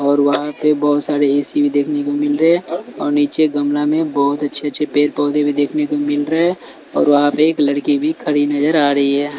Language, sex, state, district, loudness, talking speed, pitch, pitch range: Hindi, male, Delhi, New Delhi, -16 LUFS, 230 wpm, 145 Hz, 145-150 Hz